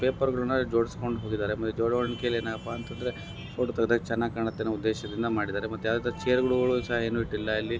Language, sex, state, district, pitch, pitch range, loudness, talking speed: Kannada, male, Karnataka, Bellary, 115 Hz, 110-120 Hz, -29 LUFS, 160 wpm